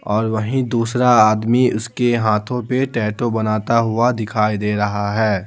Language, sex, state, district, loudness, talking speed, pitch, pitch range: Hindi, male, Bihar, Patna, -17 LUFS, 155 wpm, 110 Hz, 110-120 Hz